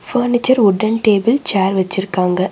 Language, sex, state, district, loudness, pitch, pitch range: Tamil, female, Tamil Nadu, Nilgiris, -14 LUFS, 205 Hz, 190-240 Hz